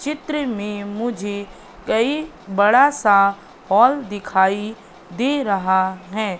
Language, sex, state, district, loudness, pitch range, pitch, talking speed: Hindi, female, Madhya Pradesh, Katni, -19 LUFS, 195-245 Hz, 205 Hz, 105 wpm